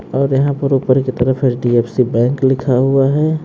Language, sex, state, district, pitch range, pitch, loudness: Hindi, male, Haryana, Jhajjar, 125-135 Hz, 130 Hz, -15 LUFS